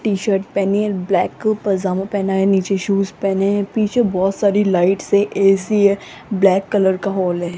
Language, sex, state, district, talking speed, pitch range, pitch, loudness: Hindi, female, Rajasthan, Jaipur, 190 wpm, 190-200 Hz, 195 Hz, -17 LUFS